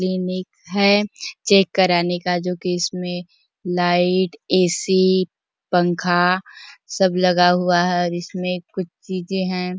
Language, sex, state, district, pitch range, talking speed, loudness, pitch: Hindi, female, Chhattisgarh, Bastar, 175-185 Hz, 115 wpm, -19 LUFS, 180 Hz